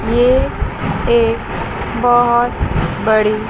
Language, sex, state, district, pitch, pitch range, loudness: Hindi, female, Chandigarh, Chandigarh, 235 Hz, 220-240 Hz, -15 LUFS